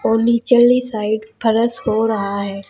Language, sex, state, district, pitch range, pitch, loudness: Hindi, female, Uttar Pradesh, Saharanpur, 215-235 Hz, 225 Hz, -17 LUFS